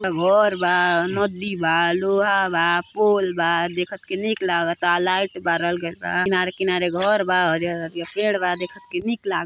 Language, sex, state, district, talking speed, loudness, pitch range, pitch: Hindi, female, Uttar Pradesh, Gorakhpur, 170 wpm, -21 LUFS, 170-195 Hz, 180 Hz